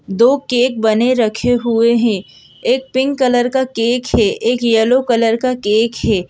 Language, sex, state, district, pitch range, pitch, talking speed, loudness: Hindi, female, Madhya Pradesh, Bhopal, 225-255 Hz, 240 Hz, 170 wpm, -15 LUFS